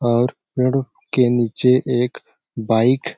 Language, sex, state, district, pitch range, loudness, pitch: Hindi, male, Chhattisgarh, Sarguja, 120-130 Hz, -19 LUFS, 125 Hz